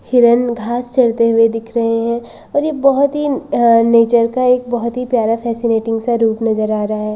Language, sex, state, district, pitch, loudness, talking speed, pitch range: Hindi, female, Uttarakhand, Uttarkashi, 235 Hz, -14 LUFS, 210 wpm, 230-245 Hz